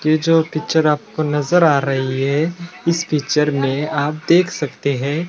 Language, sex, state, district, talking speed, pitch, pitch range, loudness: Hindi, male, Maharashtra, Washim, 170 wpm, 155 Hz, 145-165 Hz, -17 LUFS